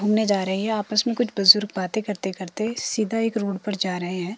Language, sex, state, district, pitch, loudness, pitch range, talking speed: Hindi, female, Himachal Pradesh, Shimla, 210 Hz, -22 LUFS, 190-220 Hz, 245 wpm